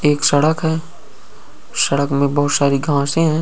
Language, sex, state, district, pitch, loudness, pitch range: Hindi, male, Uttar Pradesh, Ghazipur, 145 Hz, -17 LUFS, 140-155 Hz